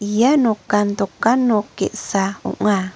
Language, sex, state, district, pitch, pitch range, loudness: Garo, female, Meghalaya, North Garo Hills, 205 Hz, 200-235 Hz, -18 LUFS